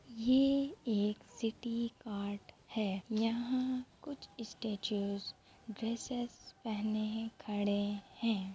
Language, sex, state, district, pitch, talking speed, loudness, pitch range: Hindi, female, Bihar, Begusarai, 225 Hz, 90 wpm, -37 LUFS, 205-240 Hz